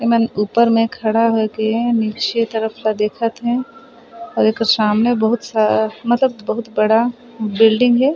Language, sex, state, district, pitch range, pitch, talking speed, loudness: Chhattisgarhi, female, Chhattisgarh, Sarguja, 220-235 Hz, 230 Hz, 155 wpm, -17 LUFS